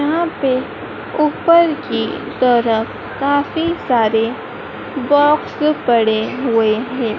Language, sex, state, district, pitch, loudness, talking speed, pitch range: Hindi, female, Madhya Pradesh, Dhar, 265 Hz, -16 LUFS, 90 wpm, 230-300 Hz